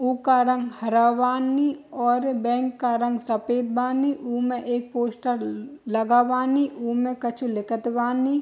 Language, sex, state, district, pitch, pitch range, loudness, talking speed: Bhojpuri, female, Bihar, East Champaran, 245 Hz, 240-255 Hz, -23 LUFS, 135 wpm